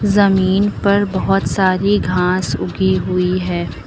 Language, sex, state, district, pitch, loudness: Hindi, female, Uttar Pradesh, Lucknow, 185 Hz, -16 LUFS